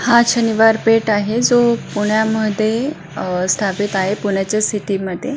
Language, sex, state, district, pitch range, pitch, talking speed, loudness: Marathi, female, Maharashtra, Pune, 205-230 Hz, 215 Hz, 135 wpm, -16 LUFS